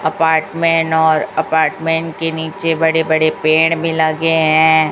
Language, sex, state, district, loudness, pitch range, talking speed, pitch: Hindi, female, Chhattisgarh, Raipur, -14 LUFS, 160-165 Hz, 135 wpm, 160 Hz